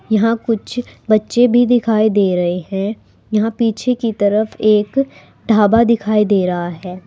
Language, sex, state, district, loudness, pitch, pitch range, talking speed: Hindi, female, Uttar Pradesh, Saharanpur, -16 LUFS, 215 Hz, 205-230 Hz, 155 wpm